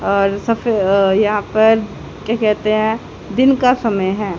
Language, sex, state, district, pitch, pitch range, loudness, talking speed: Hindi, female, Haryana, Charkhi Dadri, 215 Hz, 200-225 Hz, -16 LUFS, 165 wpm